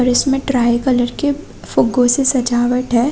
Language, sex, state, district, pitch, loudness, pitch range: Hindi, female, Chhattisgarh, Bastar, 250 Hz, -15 LUFS, 245-270 Hz